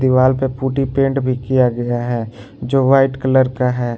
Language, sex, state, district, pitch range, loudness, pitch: Hindi, male, Jharkhand, Garhwa, 125-135 Hz, -16 LUFS, 130 Hz